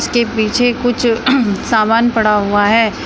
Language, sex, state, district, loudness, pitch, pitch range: Hindi, female, Uttar Pradesh, Shamli, -13 LUFS, 225 Hz, 215-240 Hz